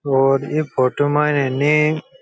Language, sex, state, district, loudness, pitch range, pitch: Rajasthani, male, Rajasthan, Churu, -18 LUFS, 135-150 Hz, 145 Hz